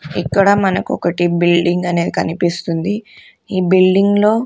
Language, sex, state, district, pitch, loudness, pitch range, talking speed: Telugu, female, Andhra Pradesh, Sri Satya Sai, 185 Hz, -15 LUFS, 175-200 Hz, 120 wpm